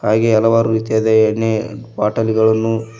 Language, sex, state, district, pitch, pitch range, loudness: Kannada, male, Karnataka, Koppal, 110 Hz, 110-115 Hz, -15 LUFS